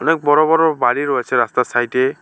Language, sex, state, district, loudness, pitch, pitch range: Bengali, male, West Bengal, Alipurduar, -16 LUFS, 145 Hz, 125-155 Hz